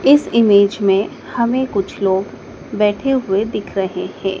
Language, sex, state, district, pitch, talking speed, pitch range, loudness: Hindi, female, Madhya Pradesh, Dhar, 200 Hz, 150 wpm, 195-235 Hz, -17 LUFS